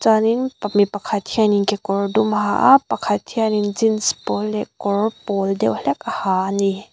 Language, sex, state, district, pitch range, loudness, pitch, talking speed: Mizo, female, Mizoram, Aizawl, 200-220 Hz, -19 LUFS, 210 Hz, 180 wpm